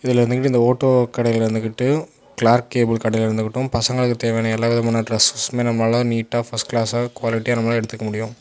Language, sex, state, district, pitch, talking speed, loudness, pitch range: Tamil, male, Tamil Nadu, Namakkal, 115 Hz, 170 wpm, -19 LUFS, 115-120 Hz